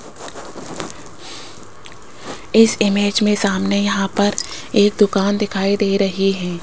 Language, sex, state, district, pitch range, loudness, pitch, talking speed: Hindi, female, Rajasthan, Jaipur, 195-205 Hz, -17 LUFS, 200 Hz, 110 wpm